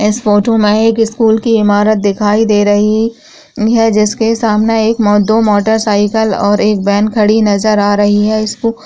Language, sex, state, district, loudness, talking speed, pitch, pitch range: Hindi, female, Rajasthan, Churu, -11 LUFS, 175 wpm, 215 Hz, 210-225 Hz